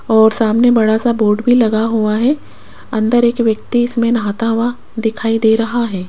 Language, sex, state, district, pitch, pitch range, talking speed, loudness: Hindi, female, Rajasthan, Jaipur, 225 Hz, 220-240 Hz, 185 wpm, -14 LUFS